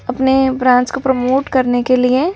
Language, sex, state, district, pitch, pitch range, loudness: Hindi, female, Delhi, New Delhi, 260 Hz, 250-265 Hz, -14 LUFS